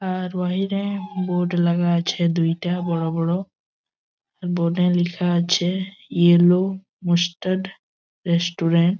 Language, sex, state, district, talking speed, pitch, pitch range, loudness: Bengali, male, West Bengal, Malda, 105 wpm, 175 Hz, 175-185 Hz, -21 LUFS